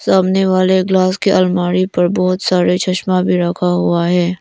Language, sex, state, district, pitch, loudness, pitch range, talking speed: Hindi, female, Arunachal Pradesh, Lower Dibang Valley, 185 Hz, -14 LUFS, 175-185 Hz, 175 wpm